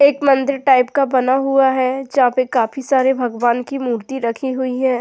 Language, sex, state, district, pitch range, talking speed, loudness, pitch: Hindi, female, Uttar Pradesh, Jyotiba Phule Nagar, 250-270 Hz, 205 wpm, -17 LUFS, 260 Hz